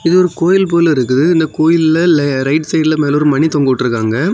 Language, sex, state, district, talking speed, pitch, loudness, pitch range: Tamil, male, Tamil Nadu, Kanyakumari, 205 wpm, 155 Hz, -12 LUFS, 145-170 Hz